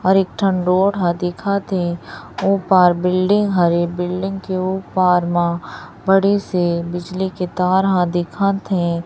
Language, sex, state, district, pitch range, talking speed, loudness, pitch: Hindi, male, Chhattisgarh, Raipur, 175-195 Hz, 160 wpm, -18 LUFS, 185 Hz